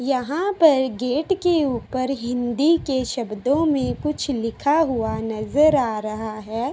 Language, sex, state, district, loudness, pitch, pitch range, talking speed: Hindi, female, Uttar Pradesh, Ghazipur, -21 LUFS, 260 Hz, 230-300 Hz, 140 wpm